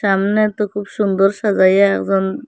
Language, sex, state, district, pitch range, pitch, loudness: Bengali, female, Assam, Hailakandi, 195-205 Hz, 200 Hz, -16 LUFS